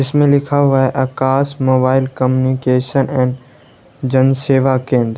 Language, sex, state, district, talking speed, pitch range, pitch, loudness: Hindi, male, Uttar Pradesh, Lalitpur, 125 wpm, 130-135 Hz, 130 Hz, -15 LUFS